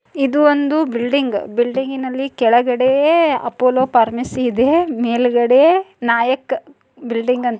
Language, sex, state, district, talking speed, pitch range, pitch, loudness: Kannada, male, Karnataka, Dharwad, 95 wpm, 240-280 Hz, 255 Hz, -16 LUFS